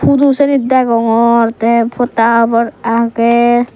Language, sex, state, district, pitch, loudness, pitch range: Chakma, female, Tripura, Dhalai, 235 Hz, -11 LUFS, 230-245 Hz